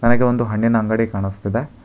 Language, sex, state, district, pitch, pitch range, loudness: Kannada, male, Karnataka, Bangalore, 115 Hz, 110-120 Hz, -19 LUFS